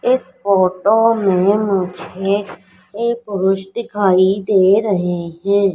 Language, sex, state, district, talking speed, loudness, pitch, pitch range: Hindi, female, Madhya Pradesh, Katni, 105 wpm, -16 LUFS, 195 Hz, 190-210 Hz